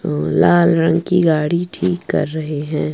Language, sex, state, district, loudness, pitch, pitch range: Hindi, female, Bihar, Patna, -16 LUFS, 165 Hz, 150-170 Hz